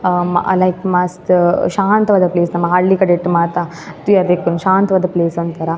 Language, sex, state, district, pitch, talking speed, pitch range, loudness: Tulu, female, Karnataka, Dakshina Kannada, 180 Hz, 145 wpm, 175-185 Hz, -14 LUFS